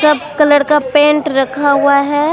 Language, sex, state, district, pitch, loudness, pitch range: Hindi, female, Bihar, Katihar, 290 Hz, -12 LUFS, 280-300 Hz